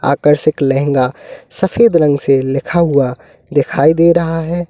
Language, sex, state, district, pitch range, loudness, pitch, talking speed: Hindi, male, Uttar Pradesh, Lalitpur, 135-165 Hz, -13 LUFS, 150 Hz, 140 wpm